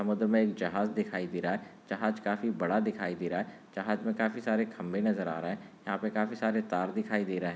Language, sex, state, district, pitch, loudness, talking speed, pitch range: Hindi, male, Maharashtra, Pune, 105 Hz, -32 LUFS, 260 wpm, 95-110 Hz